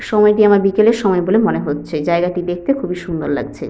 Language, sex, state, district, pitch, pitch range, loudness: Bengali, female, West Bengal, Jhargram, 180 Hz, 170-210 Hz, -16 LUFS